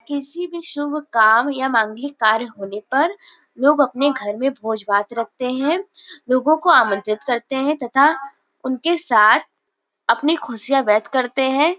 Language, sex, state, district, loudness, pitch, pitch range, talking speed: Hindi, female, Uttar Pradesh, Varanasi, -18 LUFS, 270 Hz, 230-300 Hz, 155 wpm